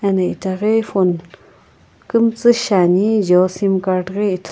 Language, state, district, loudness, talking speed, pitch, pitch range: Sumi, Nagaland, Kohima, -16 LUFS, 120 wpm, 195 Hz, 185-215 Hz